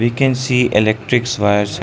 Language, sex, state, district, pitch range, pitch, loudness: English, male, Arunachal Pradesh, Lower Dibang Valley, 105-125 Hz, 115 Hz, -16 LUFS